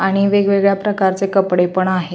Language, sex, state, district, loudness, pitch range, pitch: Marathi, female, Maharashtra, Solapur, -15 LUFS, 185-200 Hz, 195 Hz